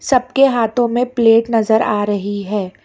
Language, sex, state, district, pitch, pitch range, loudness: Hindi, female, Karnataka, Bangalore, 225 Hz, 205-245 Hz, -15 LUFS